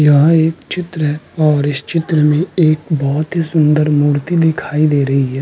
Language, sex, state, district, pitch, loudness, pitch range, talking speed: Hindi, male, Uttarakhand, Tehri Garhwal, 155 Hz, -14 LUFS, 145-160 Hz, 190 wpm